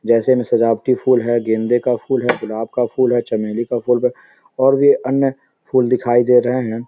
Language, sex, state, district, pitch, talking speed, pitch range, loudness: Hindi, male, Bihar, Samastipur, 120 Hz, 210 wpm, 120-130 Hz, -16 LUFS